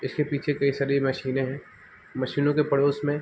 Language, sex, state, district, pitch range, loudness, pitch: Hindi, male, Bihar, East Champaran, 135-145 Hz, -25 LUFS, 140 Hz